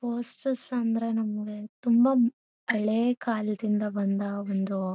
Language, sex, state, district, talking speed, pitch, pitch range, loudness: Kannada, female, Karnataka, Bellary, 75 wpm, 220 Hz, 210-240 Hz, -28 LUFS